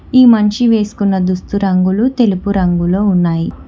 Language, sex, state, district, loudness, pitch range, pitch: Telugu, female, Telangana, Hyderabad, -13 LUFS, 185-220 Hz, 200 Hz